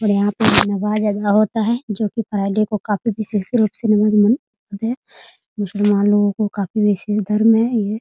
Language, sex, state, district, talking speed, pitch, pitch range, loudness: Hindi, female, Bihar, Muzaffarpur, 155 wpm, 210 Hz, 205-220 Hz, -17 LUFS